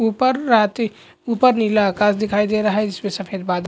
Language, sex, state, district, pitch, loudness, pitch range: Hindi, male, Bihar, Araria, 210 Hz, -18 LUFS, 205-225 Hz